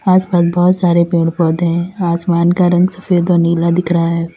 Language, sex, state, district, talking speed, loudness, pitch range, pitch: Hindi, female, Uttar Pradesh, Lalitpur, 220 wpm, -13 LUFS, 170-180 Hz, 175 Hz